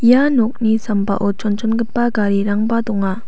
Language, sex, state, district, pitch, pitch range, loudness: Garo, female, Meghalaya, South Garo Hills, 220 Hz, 205-230 Hz, -17 LUFS